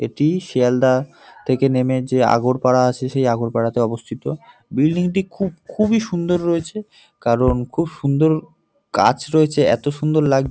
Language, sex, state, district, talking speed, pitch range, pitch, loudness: Bengali, male, West Bengal, North 24 Parganas, 130 wpm, 125-170 Hz, 140 Hz, -19 LUFS